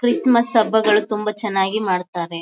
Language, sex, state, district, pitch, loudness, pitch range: Kannada, female, Karnataka, Bellary, 210 Hz, -18 LUFS, 190-220 Hz